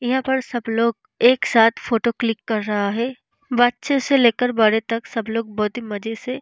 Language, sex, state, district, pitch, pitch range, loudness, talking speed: Hindi, female, Bihar, Vaishali, 230 Hz, 225-250 Hz, -20 LUFS, 225 wpm